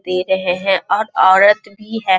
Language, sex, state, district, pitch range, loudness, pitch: Hindi, male, Bihar, Jamui, 185-205 Hz, -14 LUFS, 190 Hz